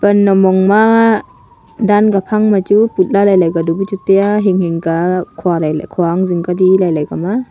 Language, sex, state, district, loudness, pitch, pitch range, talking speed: Wancho, female, Arunachal Pradesh, Longding, -13 LUFS, 190 Hz, 175-205 Hz, 120 wpm